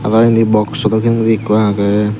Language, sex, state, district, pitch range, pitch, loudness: Chakma, male, Tripura, Dhalai, 105-115 Hz, 110 Hz, -13 LUFS